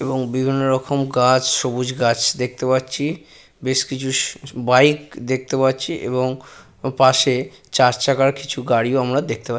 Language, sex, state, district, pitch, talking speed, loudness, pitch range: Bengali, male, West Bengal, Purulia, 130 Hz, 150 wpm, -19 LUFS, 125-135 Hz